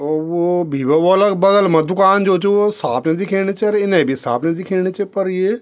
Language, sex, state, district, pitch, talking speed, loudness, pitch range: Garhwali, male, Uttarakhand, Tehri Garhwal, 185 Hz, 255 wpm, -16 LUFS, 160-200 Hz